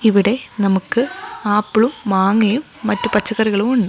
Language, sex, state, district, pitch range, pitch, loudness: Malayalam, female, Kerala, Kozhikode, 205-240 Hz, 220 Hz, -17 LUFS